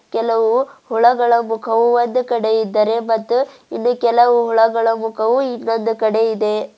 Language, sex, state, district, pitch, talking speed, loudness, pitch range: Kannada, female, Karnataka, Bidar, 230 Hz, 125 wpm, -16 LUFS, 225-240 Hz